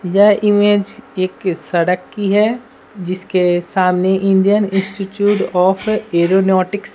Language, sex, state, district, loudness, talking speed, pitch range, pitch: Hindi, female, Bihar, Patna, -15 LUFS, 110 wpm, 185-205 Hz, 195 Hz